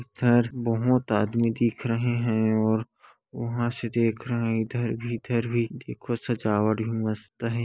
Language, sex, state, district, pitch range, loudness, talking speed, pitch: Hindi, female, Chhattisgarh, Kabirdham, 110-120 Hz, -26 LUFS, 165 wpm, 115 Hz